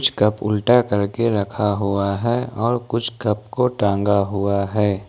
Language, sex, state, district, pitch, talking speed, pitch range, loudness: Hindi, male, Jharkhand, Ranchi, 105 Hz, 165 wpm, 100-120 Hz, -20 LUFS